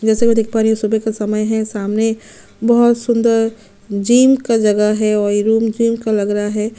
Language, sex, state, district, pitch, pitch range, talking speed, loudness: Hindi, female, Chhattisgarh, Sukma, 220 Hz, 210-230 Hz, 220 wpm, -15 LUFS